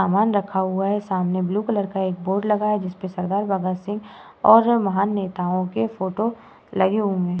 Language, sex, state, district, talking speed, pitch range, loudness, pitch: Hindi, female, Uttar Pradesh, Muzaffarnagar, 195 wpm, 185-210 Hz, -22 LUFS, 195 Hz